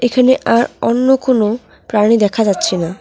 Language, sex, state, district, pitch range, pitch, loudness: Bengali, female, West Bengal, Cooch Behar, 210-250 Hz, 230 Hz, -14 LUFS